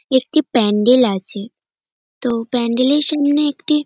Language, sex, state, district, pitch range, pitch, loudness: Bengali, male, West Bengal, North 24 Parganas, 230-295 Hz, 255 Hz, -16 LUFS